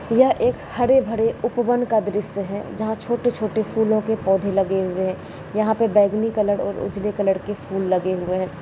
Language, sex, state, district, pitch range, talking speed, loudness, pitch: Kumaoni, female, Uttarakhand, Uttarkashi, 195-225 Hz, 175 wpm, -21 LUFS, 210 Hz